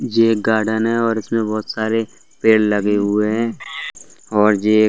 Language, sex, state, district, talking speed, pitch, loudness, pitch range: Hindi, male, Bihar, Saran, 195 wpm, 110 Hz, -18 LUFS, 105-115 Hz